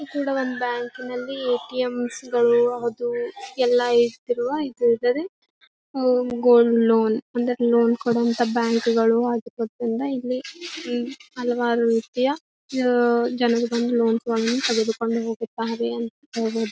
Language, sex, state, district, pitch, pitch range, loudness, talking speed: Kannada, female, Karnataka, Gulbarga, 240 Hz, 235-255 Hz, -22 LUFS, 110 wpm